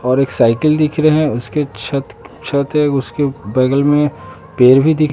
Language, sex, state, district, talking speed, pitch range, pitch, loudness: Hindi, male, Bihar, West Champaran, 185 wpm, 125-150 Hz, 140 Hz, -14 LUFS